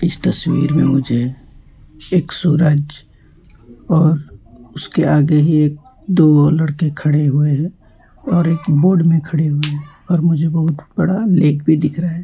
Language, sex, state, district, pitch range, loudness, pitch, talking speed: Hindi, male, West Bengal, Alipurduar, 145-165 Hz, -15 LUFS, 155 Hz, 155 wpm